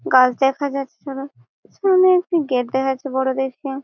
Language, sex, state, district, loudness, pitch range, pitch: Bengali, female, West Bengal, Malda, -19 LUFS, 260-285 Hz, 270 Hz